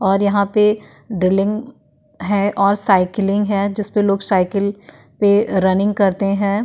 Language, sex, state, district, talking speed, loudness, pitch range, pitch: Hindi, female, Uttarakhand, Tehri Garhwal, 145 wpm, -17 LUFS, 195-205 Hz, 200 Hz